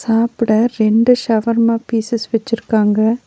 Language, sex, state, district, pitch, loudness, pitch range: Tamil, female, Tamil Nadu, Nilgiris, 230 Hz, -15 LUFS, 220-230 Hz